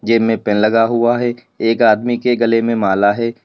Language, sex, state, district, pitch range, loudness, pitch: Hindi, male, Uttar Pradesh, Lalitpur, 115-120 Hz, -15 LUFS, 115 Hz